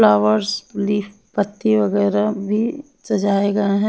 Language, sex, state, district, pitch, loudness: Hindi, female, Himachal Pradesh, Shimla, 200 Hz, -19 LUFS